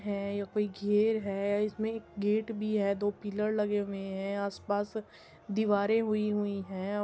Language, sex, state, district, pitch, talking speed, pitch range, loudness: Hindi, female, Uttar Pradesh, Muzaffarnagar, 205 Hz, 185 wpm, 200-215 Hz, -32 LUFS